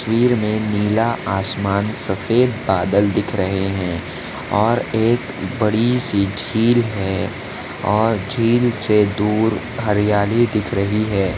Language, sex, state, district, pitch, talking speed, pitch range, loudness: Hindi, male, Maharashtra, Nagpur, 105 Hz, 120 wpm, 100-115 Hz, -18 LUFS